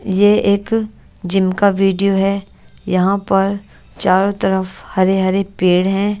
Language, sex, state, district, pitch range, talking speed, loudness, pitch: Hindi, female, Odisha, Nuapada, 190-200 Hz, 125 wpm, -16 LUFS, 195 Hz